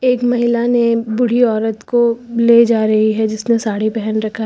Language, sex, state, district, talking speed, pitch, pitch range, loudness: Hindi, female, Uttar Pradesh, Lucknow, 200 wpm, 230 Hz, 220-240 Hz, -15 LUFS